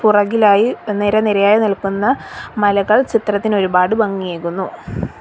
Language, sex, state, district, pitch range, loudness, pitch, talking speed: Malayalam, female, Kerala, Kollam, 200-215 Hz, -16 LUFS, 205 Hz, 80 wpm